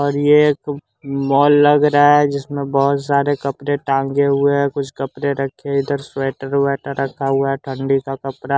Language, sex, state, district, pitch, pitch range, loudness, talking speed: Hindi, male, Bihar, West Champaran, 140 Hz, 135-145 Hz, -17 LUFS, 180 wpm